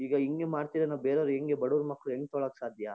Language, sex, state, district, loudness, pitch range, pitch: Kannada, male, Karnataka, Shimoga, -32 LUFS, 135-150 Hz, 140 Hz